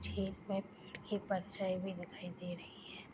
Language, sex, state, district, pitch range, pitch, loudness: Hindi, female, Bihar, Gopalganj, 175-195 Hz, 185 Hz, -42 LUFS